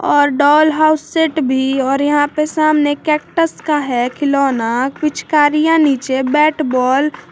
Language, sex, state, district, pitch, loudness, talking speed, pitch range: Hindi, female, Jharkhand, Garhwa, 290 Hz, -14 LUFS, 145 wpm, 270-305 Hz